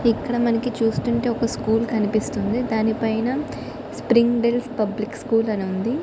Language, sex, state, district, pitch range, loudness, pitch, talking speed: Telugu, female, Andhra Pradesh, Visakhapatnam, 220-240 Hz, -22 LUFS, 230 Hz, 130 wpm